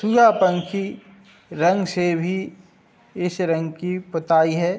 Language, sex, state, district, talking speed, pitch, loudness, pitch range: Hindi, male, Uttar Pradesh, Budaun, 125 wpm, 180 Hz, -21 LUFS, 170-195 Hz